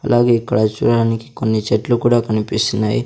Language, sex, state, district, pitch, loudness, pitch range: Telugu, male, Andhra Pradesh, Sri Satya Sai, 115 Hz, -17 LUFS, 110-120 Hz